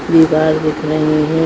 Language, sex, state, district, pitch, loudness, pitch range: Hindi, female, Chhattisgarh, Bastar, 155 Hz, -14 LUFS, 155-160 Hz